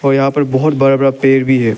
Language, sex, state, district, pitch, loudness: Hindi, male, Arunachal Pradesh, Lower Dibang Valley, 135 Hz, -12 LUFS